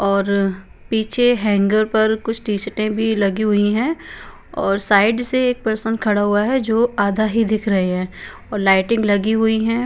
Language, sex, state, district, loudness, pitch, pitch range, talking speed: Hindi, female, Bihar, Patna, -18 LUFS, 215 Hz, 205-225 Hz, 175 wpm